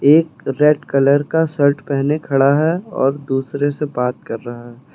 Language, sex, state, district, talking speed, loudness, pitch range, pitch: Hindi, male, Uttar Pradesh, Lucknow, 180 wpm, -17 LUFS, 135-150 Hz, 140 Hz